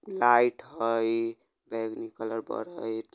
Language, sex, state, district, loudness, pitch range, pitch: Bajjika, male, Bihar, Vaishali, -29 LUFS, 115-120 Hz, 115 Hz